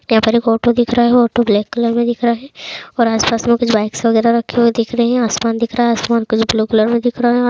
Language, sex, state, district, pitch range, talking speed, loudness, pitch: Hindi, female, Chhattisgarh, Raigarh, 225-240 Hz, 305 wpm, -14 LUFS, 235 Hz